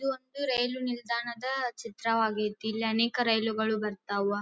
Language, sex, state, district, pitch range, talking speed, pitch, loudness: Kannada, female, Karnataka, Dharwad, 220-250 Hz, 120 wpm, 230 Hz, -30 LUFS